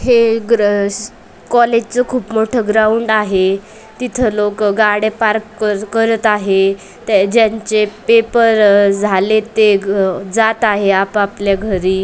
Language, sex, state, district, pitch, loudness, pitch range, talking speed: Marathi, female, Maharashtra, Aurangabad, 215 Hz, -13 LUFS, 200-225 Hz, 115 wpm